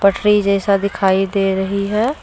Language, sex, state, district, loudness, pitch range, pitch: Hindi, female, Jharkhand, Deoghar, -16 LUFS, 195-205 Hz, 200 Hz